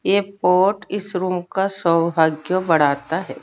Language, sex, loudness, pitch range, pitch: Hindi, female, -19 LUFS, 160-195 Hz, 180 Hz